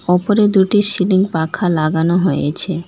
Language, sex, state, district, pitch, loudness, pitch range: Bengali, female, West Bengal, Alipurduar, 180 Hz, -14 LUFS, 165-195 Hz